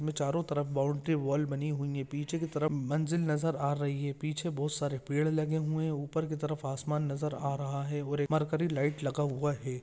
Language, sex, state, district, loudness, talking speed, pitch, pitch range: Hindi, male, Jharkhand, Sahebganj, -33 LUFS, 225 wpm, 145 Hz, 140-155 Hz